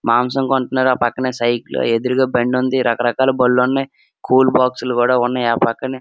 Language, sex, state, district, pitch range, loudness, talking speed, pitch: Telugu, male, Andhra Pradesh, Srikakulam, 120-130 Hz, -16 LUFS, 190 wpm, 125 Hz